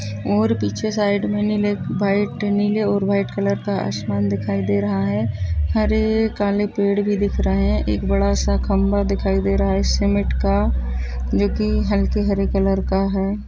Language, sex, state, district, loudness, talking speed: Hindi, female, Maharashtra, Dhule, -20 LUFS, 175 wpm